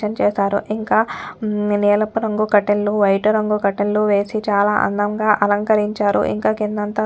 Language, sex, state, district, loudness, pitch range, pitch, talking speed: Telugu, female, Telangana, Nalgonda, -18 LUFS, 205-215 Hz, 210 Hz, 155 wpm